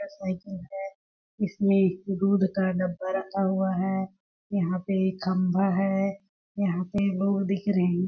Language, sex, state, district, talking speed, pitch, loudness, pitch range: Hindi, female, Chhattisgarh, Balrampur, 155 wpm, 195 Hz, -27 LUFS, 185-195 Hz